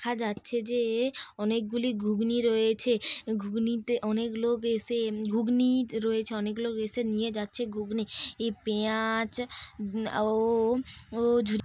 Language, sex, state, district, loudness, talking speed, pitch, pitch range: Bengali, female, West Bengal, Dakshin Dinajpur, -29 LUFS, 140 wpm, 225 Hz, 215-235 Hz